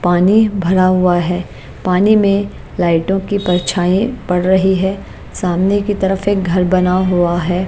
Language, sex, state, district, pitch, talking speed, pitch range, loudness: Hindi, female, Maharashtra, Mumbai Suburban, 185 Hz, 155 wpm, 180-195 Hz, -14 LUFS